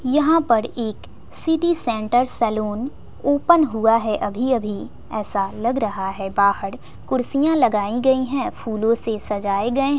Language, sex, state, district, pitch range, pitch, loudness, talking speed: Hindi, female, Bihar, West Champaran, 210-265 Hz, 230 Hz, -20 LUFS, 145 wpm